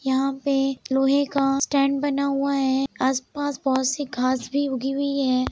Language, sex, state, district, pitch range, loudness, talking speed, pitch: Hindi, female, Uttar Pradesh, Jalaun, 265-280 Hz, -23 LUFS, 175 wpm, 275 Hz